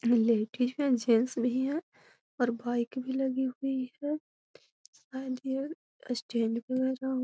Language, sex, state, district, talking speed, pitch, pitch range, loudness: Magahi, female, Bihar, Gaya, 155 wpm, 255 Hz, 240-265 Hz, -31 LUFS